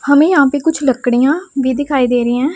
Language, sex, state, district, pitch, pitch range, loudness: Hindi, female, Punjab, Pathankot, 275 Hz, 255-290 Hz, -13 LUFS